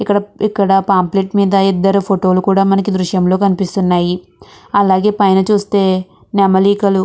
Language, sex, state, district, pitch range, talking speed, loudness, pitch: Telugu, female, Andhra Pradesh, Guntur, 190-200 Hz, 145 wpm, -13 LUFS, 195 Hz